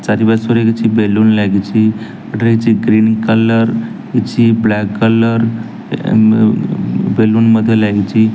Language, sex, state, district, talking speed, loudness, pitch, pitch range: Odia, male, Odisha, Nuapada, 115 wpm, -12 LUFS, 110 Hz, 110-115 Hz